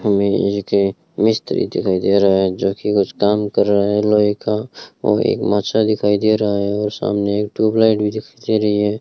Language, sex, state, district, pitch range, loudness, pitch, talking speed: Hindi, male, Rajasthan, Bikaner, 100-105 Hz, -17 LUFS, 105 Hz, 195 wpm